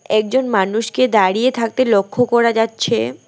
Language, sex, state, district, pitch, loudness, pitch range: Bengali, female, West Bengal, Alipurduar, 230 Hz, -16 LUFS, 215-250 Hz